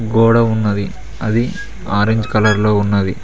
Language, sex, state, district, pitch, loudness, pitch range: Telugu, male, Telangana, Mahabubabad, 110 Hz, -15 LUFS, 100-115 Hz